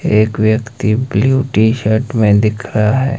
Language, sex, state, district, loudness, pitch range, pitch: Hindi, male, Himachal Pradesh, Shimla, -14 LUFS, 105-125 Hz, 110 Hz